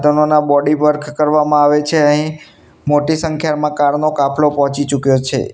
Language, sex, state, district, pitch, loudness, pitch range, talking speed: Gujarati, male, Gujarat, Gandhinagar, 150 Hz, -14 LUFS, 145-150 Hz, 160 wpm